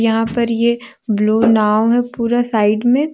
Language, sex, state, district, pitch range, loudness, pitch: Hindi, female, Jharkhand, Deoghar, 220-240 Hz, -15 LUFS, 230 Hz